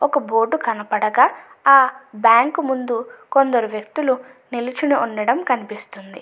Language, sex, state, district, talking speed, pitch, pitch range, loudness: Telugu, female, Andhra Pradesh, Anantapur, 115 wpm, 250 Hz, 225-275 Hz, -18 LUFS